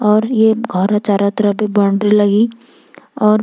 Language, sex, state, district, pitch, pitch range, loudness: Garhwali, female, Uttarakhand, Tehri Garhwal, 210 Hz, 205-220 Hz, -14 LUFS